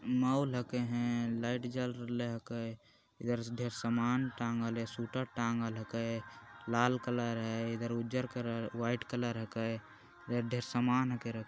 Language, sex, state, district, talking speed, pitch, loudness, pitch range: Magahi, male, Bihar, Jamui, 150 wpm, 120 Hz, -36 LUFS, 115-125 Hz